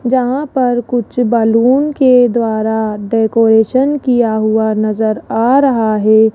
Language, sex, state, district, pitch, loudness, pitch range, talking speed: Hindi, female, Rajasthan, Jaipur, 230 Hz, -12 LUFS, 220-255 Hz, 125 wpm